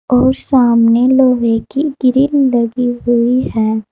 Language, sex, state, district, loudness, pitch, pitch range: Hindi, female, Uttar Pradesh, Saharanpur, -13 LUFS, 250 Hz, 235-260 Hz